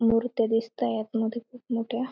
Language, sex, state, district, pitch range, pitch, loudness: Marathi, female, Maharashtra, Aurangabad, 225-240 Hz, 230 Hz, -28 LUFS